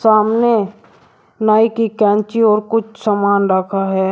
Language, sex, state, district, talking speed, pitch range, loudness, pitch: Hindi, male, Uttar Pradesh, Shamli, 130 wpm, 200-225 Hz, -15 LUFS, 215 Hz